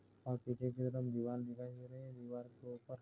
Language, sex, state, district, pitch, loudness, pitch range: Hindi, male, Goa, North and South Goa, 125 Hz, -44 LUFS, 120-125 Hz